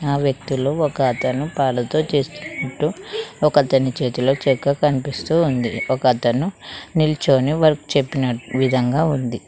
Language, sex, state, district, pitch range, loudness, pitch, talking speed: Telugu, female, Telangana, Mahabubabad, 130-150 Hz, -19 LUFS, 140 Hz, 100 wpm